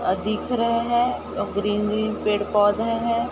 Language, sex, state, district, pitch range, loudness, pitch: Hindi, female, Chhattisgarh, Bilaspur, 210-230 Hz, -23 LUFS, 215 Hz